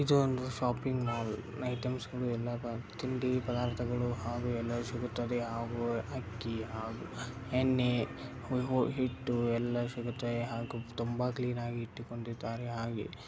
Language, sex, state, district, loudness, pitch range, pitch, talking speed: Kannada, male, Karnataka, Dharwad, -35 LUFS, 115-125 Hz, 120 Hz, 120 wpm